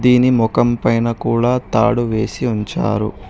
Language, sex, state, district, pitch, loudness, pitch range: Telugu, male, Telangana, Hyderabad, 120 Hz, -16 LUFS, 115-125 Hz